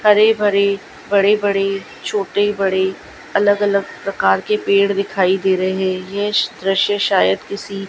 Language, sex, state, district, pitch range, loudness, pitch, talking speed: Hindi, female, Gujarat, Gandhinagar, 195-205 Hz, -17 LUFS, 200 Hz, 150 wpm